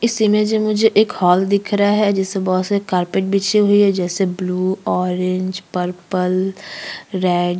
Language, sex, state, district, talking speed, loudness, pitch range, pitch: Hindi, female, Chhattisgarh, Kabirdham, 175 wpm, -17 LUFS, 185-205 Hz, 190 Hz